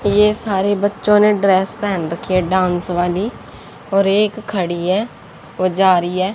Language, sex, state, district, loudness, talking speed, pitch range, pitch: Hindi, female, Haryana, Charkhi Dadri, -16 LUFS, 170 wpm, 180-205 Hz, 190 Hz